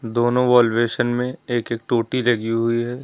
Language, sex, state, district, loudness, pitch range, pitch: Hindi, male, Uttar Pradesh, Lucknow, -20 LUFS, 115-125 Hz, 120 Hz